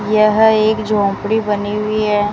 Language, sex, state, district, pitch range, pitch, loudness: Hindi, female, Rajasthan, Bikaner, 205-215 Hz, 215 Hz, -15 LUFS